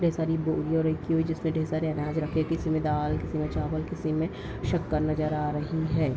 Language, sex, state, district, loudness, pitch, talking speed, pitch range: Hindi, female, Bihar, Darbhanga, -28 LUFS, 155 Hz, 235 wpm, 155-160 Hz